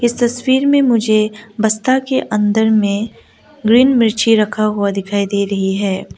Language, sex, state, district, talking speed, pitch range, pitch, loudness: Hindi, female, Arunachal Pradesh, Lower Dibang Valley, 155 wpm, 205-240 Hz, 220 Hz, -15 LUFS